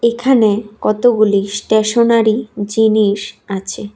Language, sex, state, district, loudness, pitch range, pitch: Bengali, female, Tripura, West Tripura, -14 LUFS, 205-235 Hz, 215 Hz